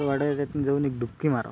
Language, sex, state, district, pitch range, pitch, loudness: Marathi, male, Maharashtra, Sindhudurg, 140-145 Hz, 140 Hz, -27 LUFS